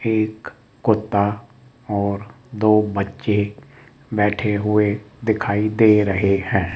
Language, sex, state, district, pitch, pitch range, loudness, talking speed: Hindi, male, Rajasthan, Jaipur, 105 Hz, 105-115 Hz, -20 LUFS, 100 wpm